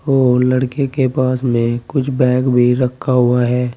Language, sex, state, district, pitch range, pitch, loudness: Hindi, male, Uttar Pradesh, Saharanpur, 125-130 Hz, 125 Hz, -15 LUFS